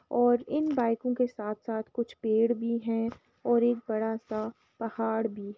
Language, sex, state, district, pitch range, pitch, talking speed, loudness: Hindi, female, Uttar Pradesh, Jalaun, 220-240 Hz, 230 Hz, 160 wpm, -30 LUFS